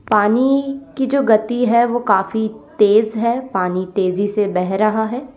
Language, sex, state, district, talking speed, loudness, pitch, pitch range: Hindi, female, Uttar Pradesh, Lalitpur, 170 wpm, -17 LUFS, 220 Hz, 205-245 Hz